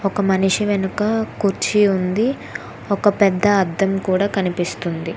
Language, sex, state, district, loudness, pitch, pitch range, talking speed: Telugu, female, Telangana, Hyderabad, -19 LUFS, 195 Hz, 190-205 Hz, 115 wpm